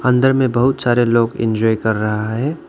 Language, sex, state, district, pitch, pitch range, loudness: Hindi, male, Arunachal Pradesh, Lower Dibang Valley, 120 Hz, 110-130 Hz, -16 LUFS